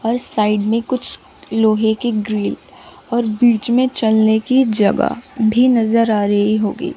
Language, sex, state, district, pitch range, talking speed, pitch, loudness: Hindi, female, Chandigarh, Chandigarh, 215-240 Hz, 155 wpm, 225 Hz, -16 LUFS